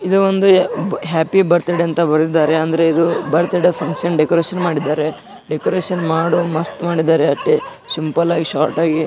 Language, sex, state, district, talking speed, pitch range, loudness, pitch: Kannada, male, Karnataka, Gulbarga, 60 wpm, 160-180 Hz, -16 LUFS, 170 Hz